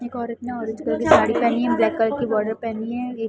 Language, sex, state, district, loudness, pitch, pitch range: Hindi, female, Chhattisgarh, Balrampur, -21 LUFS, 235 Hz, 225-240 Hz